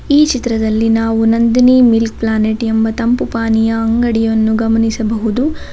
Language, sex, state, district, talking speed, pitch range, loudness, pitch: Kannada, female, Karnataka, Bangalore, 115 wpm, 225-235 Hz, -13 LUFS, 225 Hz